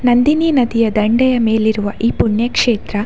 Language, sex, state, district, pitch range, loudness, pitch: Kannada, female, Karnataka, Dakshina Kannada, 220-250 Hz, -14 LUFS, 230 Hz